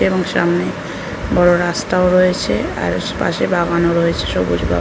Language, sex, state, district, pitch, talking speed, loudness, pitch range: Bengali, female, West Bengal, North 24 Parganas, 175 Hz, 150 wpm, -16 LUFS, 170-180 Hz